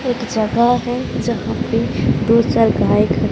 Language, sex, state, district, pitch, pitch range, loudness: Hindi, male, Odisha, Sambalpur, 240 Hz, 235-245 Hz, -17 LUFS